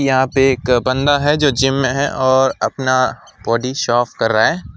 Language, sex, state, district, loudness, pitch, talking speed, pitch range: Hindi, male, West Bengal, Alipurduar, -16 LUFS, 130 Hz, 200 wpm, 130-135 Hz